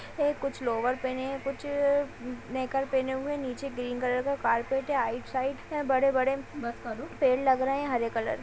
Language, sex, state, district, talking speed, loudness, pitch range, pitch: Hindi, female, Bihar, Bhagalpur, 165 wpm, -29 LUFS, 250-275 Hz, 265 Hz